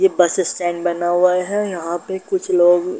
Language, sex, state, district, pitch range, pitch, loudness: Hindi, male, Bihar, Darbhanga, 175-190 Hz, 180 Hz, -18 LUFS